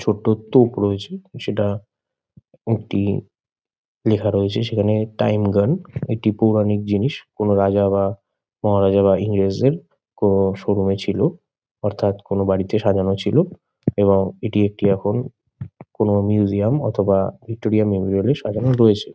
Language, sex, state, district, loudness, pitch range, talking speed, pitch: Bengali, male, West Bengal, Kolkata, -19 LUFS, 100-115 Hz, 125 wpm, 105 Hz